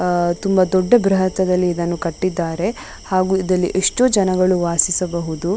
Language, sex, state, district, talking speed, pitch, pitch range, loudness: Kannada, female, Karnataka, Dakshina Kannada, 140 wpm, 185 Hz, 175-190 Hz, -17 LUFS